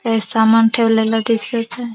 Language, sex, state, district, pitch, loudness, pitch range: Marathi, female, Maharashtra, Dhule, 225 Hz, -15 LUFS, 225-230 Hz